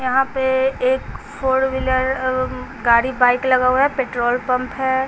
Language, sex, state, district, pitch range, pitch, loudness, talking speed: Hindi, female, Bihar, Patna, 255-265 Hz, 260 Hz, -18 LUFS, 165 wpm